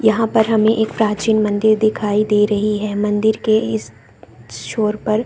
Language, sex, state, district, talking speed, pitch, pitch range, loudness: Hindi, female, Bihar, Saran, 195 wpm, 215 Hz, 205-220 Hz, -17 LUFS